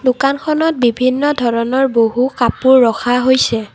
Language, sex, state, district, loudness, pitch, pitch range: Assamese, female, Assam, Kamrup Metropolitan, -14 LUFS, 255 Hz, 235-270 Hz